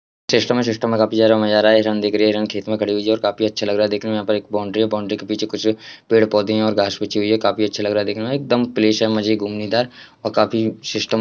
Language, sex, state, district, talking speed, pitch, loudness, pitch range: Hindi, male, Bihar, Jahanabad, 290 wpm, 110 Hz, -18 LUFS, 105-110 Hz